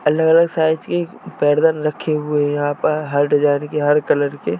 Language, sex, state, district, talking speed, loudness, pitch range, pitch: Hindi, male, Uttar Pradesh, Jalaun, 170 wpm, -17 LUFS, 145-160 Hz, 150 Hz